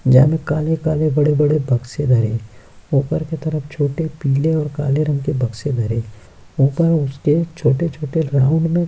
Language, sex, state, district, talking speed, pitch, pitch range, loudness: Hindi, male, Bihar, Kishanganj, 155 wpm, 150 Hz, 135-160 Hz, -18 LUFS